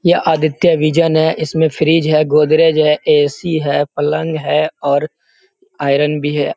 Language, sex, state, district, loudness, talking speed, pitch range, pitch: Hindi, male, Bihar, Jamui, -14 LUFS, 155 wpm, 150-160 Hz, 155 Hz